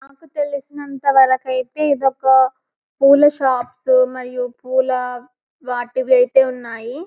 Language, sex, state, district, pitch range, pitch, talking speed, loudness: Telugu, female, Telangana, Karimnagar, 250-285 Hz, 260 Hz, 110 wpm, -17 LUFS